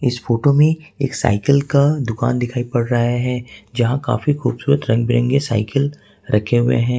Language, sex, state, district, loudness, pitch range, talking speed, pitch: Hindi, male, Jharkhand, Ranchi, -18 LUFS, 120-140 Hz, 165 wpm, 125 Hz